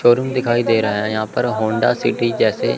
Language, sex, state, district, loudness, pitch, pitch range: Hindi, male, Chandigarh, Chandigarh, -18 LUFS, 115 Hz, 110-120 Hz